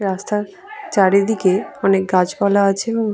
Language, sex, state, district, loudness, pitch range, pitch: Bengali, female, West Bengal, Purulia, -17 LUFS, 195-215 Hz, 200 Hz